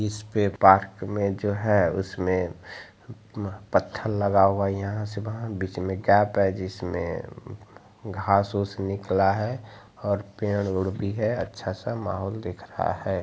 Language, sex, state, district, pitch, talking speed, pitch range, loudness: Hindi, male, Bihar, Araria, 100 Hz, 140 wpm, 95-105 Hz, -25 LUFS